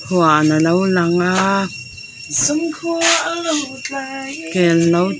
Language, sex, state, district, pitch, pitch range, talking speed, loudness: Mizo, female, Mizoram, Aizawl, 185 Hz, 165-275 Hz, 90 wpm, -16 LUFS